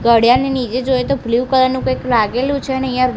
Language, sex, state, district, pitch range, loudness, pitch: Gujarati, female, Gujarat, Gandhinagar, 235-265 Hz, -16 LUFS, 255 Hz